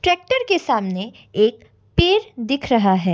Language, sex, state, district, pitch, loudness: Hindi, female, Assam, Kamrup Metropolitan, 250 Hz, -19 LUFS